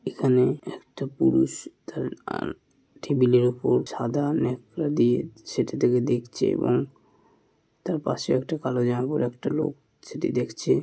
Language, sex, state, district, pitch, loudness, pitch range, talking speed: Bengali, male, West Bengal, Malda, 125 Hz, -25 LUFS, 120-140 Hz, 120 wpm